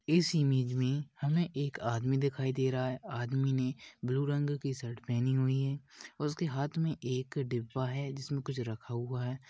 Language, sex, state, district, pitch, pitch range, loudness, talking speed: Hindi, male, Maharashtra, Pune, 135 Hz, 130-140 Hz, -34 LUFS, 195 wpm